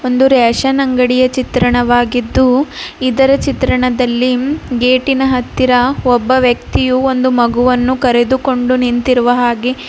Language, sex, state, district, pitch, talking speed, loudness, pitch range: Kannada, female, Karnataka, Bidar, 255 Hz, 90 wpm, -12 LUFS, 245-260 Hz